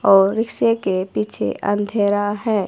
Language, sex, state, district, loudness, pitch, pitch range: Hindi, female, Himachal Pradesh, Shimla, -19 LUFS, 205 Hz, 195-210 Hz